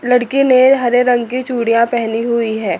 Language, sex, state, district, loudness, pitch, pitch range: Hindi, female, Chandigarh, Chandigarh, -14 LUFS, 245 Hz, 230-255 Hz